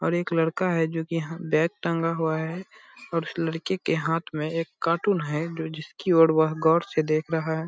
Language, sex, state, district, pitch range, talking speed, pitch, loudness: Hindi, male, Bihar, Purnia, 160-170 Hz, 235 wpm, 165 Hz, -25 LUFS